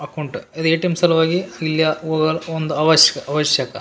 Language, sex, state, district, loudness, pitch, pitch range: Kannada, male, Karnataka, Raichur, -17 LUFS, 160 Hz, 150-160 Hz